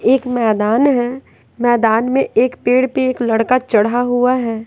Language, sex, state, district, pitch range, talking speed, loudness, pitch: Hindi, female, Bihar, West Champaran, 230-255 Hz, 165 wpm, -15 LUFS, 245 Hz